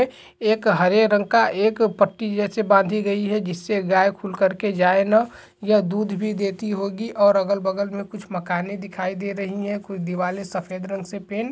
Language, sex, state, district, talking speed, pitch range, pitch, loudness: Hindi, male, Chhattisgarh, Balrampur, 210 wpm, 195-210 Hz, 200 Hz, -22 LUFS